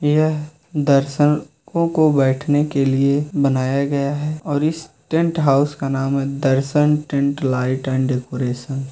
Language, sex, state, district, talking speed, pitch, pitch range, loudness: Hindi, male, Uttar Pradesh, Muzaffarnagar, 150 wpm, 140 Hz, 135-150 Hz, -19 LUFS